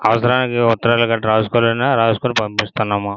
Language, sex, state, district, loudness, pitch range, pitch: Telugu, male, Andhra Pradesh, Srikakulam, -16 LUFS, 110-120 Hz, 115 Hz